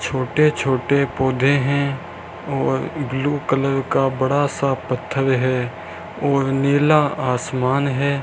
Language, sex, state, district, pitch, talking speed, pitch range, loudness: Hindi, male, Rajasthan, Bikaner, 135 Hz, 115 wpm, 130-140 Hz, -19 LUFS